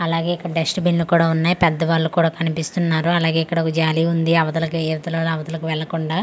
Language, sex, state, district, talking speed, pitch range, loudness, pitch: Telugu, female, Andhra Pradesh, Manyam, 190 wpm, 160-170 Hz, -19 LUFS, 165 Hz